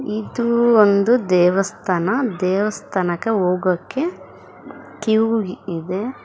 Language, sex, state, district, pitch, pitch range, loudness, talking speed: Kannada, female, Karnataka, Bangalore, 210 Hz, 185-225 Hz, -19 LUFS, 65 wpm